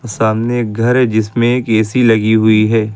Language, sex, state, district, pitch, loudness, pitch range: Hindi, male, Uttar Pradesh, Lucknow, 110 Hz, -13 LUFS, 110-120 Hz